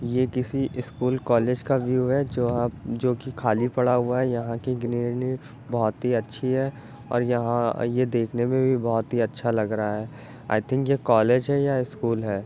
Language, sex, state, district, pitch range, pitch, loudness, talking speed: Hindi, male, Uttar Pradesh, Jyotiba Phule Nagar, 115-130 Hz, 120 Hz, -25 LUFS, 190 wpm